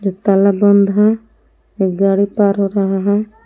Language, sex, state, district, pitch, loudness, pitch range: Hindi, female, Jharkhand, Palamu, 200 Hz, -14 LUFS, 195-210 Hz